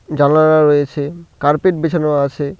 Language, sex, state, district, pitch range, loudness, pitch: Bengali, male, West Bengal, Cooch Behar, 145-165 Hz, -14 LUFS, 150 Hz